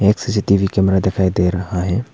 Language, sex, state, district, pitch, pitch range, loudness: Hindi, male, Arunachal Pradesh, Papum Pare, 95 Hz, 95-100 Hz, -17 LUFS